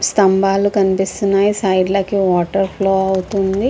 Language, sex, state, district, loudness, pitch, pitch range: Telugu, female, Andhra Pradesh, Visakhapatnam, -15 LUFS, 195 Hz, 190-200 Hz